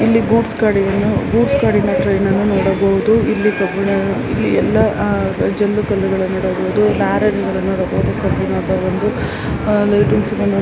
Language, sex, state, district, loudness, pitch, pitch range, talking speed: Kannada, female, Karnataka, Raichur, -16 LUFS, 200 Hz, 195-210 Hz, 90 wpm